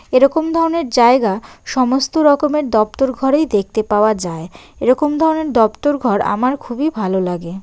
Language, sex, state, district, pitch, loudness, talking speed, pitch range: Bengali, female, West Bengal, Jalpaiguri, 255 Hz, -16 LUFS, 140 wpm, 215-295 Hz